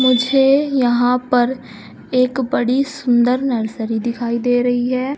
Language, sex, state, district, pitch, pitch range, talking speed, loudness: Hindi, female, Uttar Pradesh, Saharanpur, 250 Hz, 240-260 Hz, 125 wpm, -17 LUFS